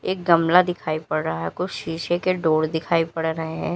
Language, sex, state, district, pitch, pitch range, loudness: Hindi, female, Uttar Pradesh, Lalitpur, 165 Hz, 155-175 Hz, -22 LUFS